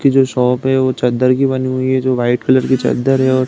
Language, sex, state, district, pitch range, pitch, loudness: Hindi, male, Uttar Pradesh, Deoria, 125-130 Hz, 130 Hz, -14 LUFS